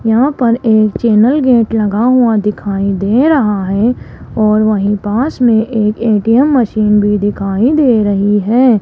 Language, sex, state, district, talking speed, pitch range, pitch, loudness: Hindi, female, Rajasthan, Jaipur, 155 wpm, 205-245 Hz, 220 Hz, -11 LUFS